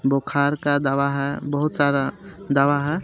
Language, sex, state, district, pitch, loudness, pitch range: Hindi, male, Jharkhand, Garhwa, 140 Hz, -21 LUFS, 140-145 Hz